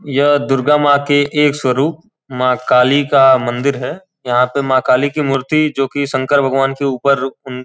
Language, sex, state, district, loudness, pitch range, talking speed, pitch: Hindi, male, Uttar Pradesh, Gorakhpur, -14 LUFS, 130-145 Hz, 180 wpm, 140 Hz